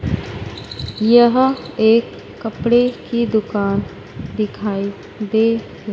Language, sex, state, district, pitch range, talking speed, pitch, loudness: Hindi, female, Madhya Pradesh, Dhar, 200-230 Hz, 70 wpm, 220 Hz, -17 LUFS